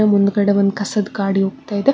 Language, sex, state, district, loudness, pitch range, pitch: Kannada, female, Karnataka, Bangalore, -18 LUFS, 200-210 Hz, 205 Hz